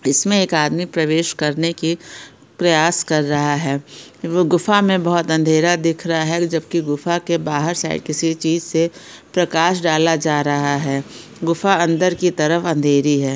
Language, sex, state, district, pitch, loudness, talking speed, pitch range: Hindi, female, Bihar, Araria, 165 Hz, -18 LUFS, 165 wpm, 150-170 Hz